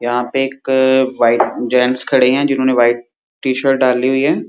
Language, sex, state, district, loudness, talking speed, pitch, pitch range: Hindi, male, Uttar Pradesh, Muzaffarnagar, -14 LUFS, 185 wpm, 130 Hz, 125-135 Hz